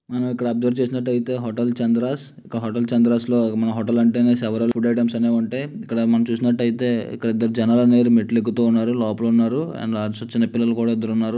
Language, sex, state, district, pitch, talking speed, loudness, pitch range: Telugu, male, Andhra Pradesh, Visakhapatnam, 115 Hz, 195 wpm, -20 LUFS, 115-120 Hz